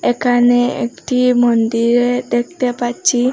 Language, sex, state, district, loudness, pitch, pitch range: Bengali, female, Assam, Hailakandi, -15 LUFS, 245 Hz, 240-250 Hz